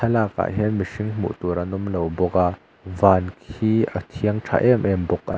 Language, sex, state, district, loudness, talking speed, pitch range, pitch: Mizo, male, Mizoram, Aizawl, -22 LUFS, 200 wpm, 90-105 Hz, 100 Hz